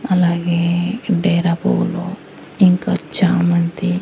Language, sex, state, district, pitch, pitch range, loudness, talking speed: Telugu, male, Andhra Pradesh, Annamaya, 175 Hz, 170-185 Hz, -17 LUFS, 75 wpm